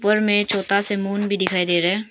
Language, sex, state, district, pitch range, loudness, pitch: Hindi, female, Arunachal Pradesh, Papum Pare, 190-205 Hz, -20 LUFS, 200 Hz